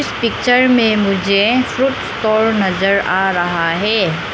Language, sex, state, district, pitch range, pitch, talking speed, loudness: Hindi, female, Arunachal Pradesh, Lower Dibang Valley, 190-230 Hz, 205 Hz, 125 wpm, -14 LUFS